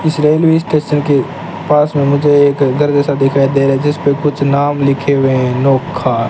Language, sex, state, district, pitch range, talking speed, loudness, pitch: Hindi, male, Rajasthan, Bikaner, 140-150 Hz, 210 wpm, -12 LUFS, 140 Hz